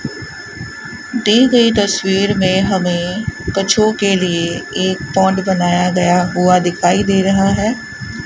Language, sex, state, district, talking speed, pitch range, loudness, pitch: Hindi, female, Rajasthan, Bikaner, 125 wpm, 180-200 Hz, -14 LUFS, 190 Hz